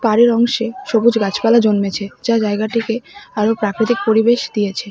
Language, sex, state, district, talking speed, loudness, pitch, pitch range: Bengali, female, West Bengal, Alipurduar, 135 wpm, -16 LUFS, 225 Hz, 210-235 Hz